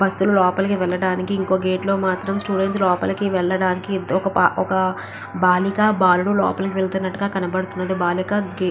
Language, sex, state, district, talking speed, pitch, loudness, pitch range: Telugu, female, Andhra Pradesh, Visakhapatnam, 130 wpm, 190 Hz, -20 LUFS, 185-195 Hz